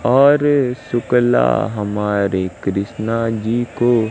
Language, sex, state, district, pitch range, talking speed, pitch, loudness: Hindi, male, Madhya Pradesh, Katni, 100-125 Hz, 85 wpm, 115 Hz, -17 LUFS